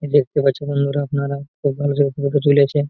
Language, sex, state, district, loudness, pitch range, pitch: Bengali, male, West Bengal, Malda, -19 LUFS, 140-145 Hz, 140 Hz